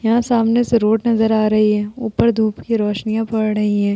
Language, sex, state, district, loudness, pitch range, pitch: Hindi, female, Uttar Pradesh, Jalaun, -17 LUFS, 215-230 Hz, 220 Hz